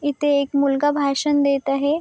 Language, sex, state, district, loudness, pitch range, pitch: Marathi, female, Maharashtra, Chandrapur, -19 LUFS, 275-290 Hz, 280 Hz